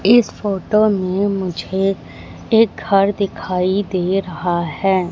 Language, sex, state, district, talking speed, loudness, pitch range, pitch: Hindi, female, Madhya Pradesh, Katni, 115 wpm, -18 LUFS, 185-200 Hz, 195 Hz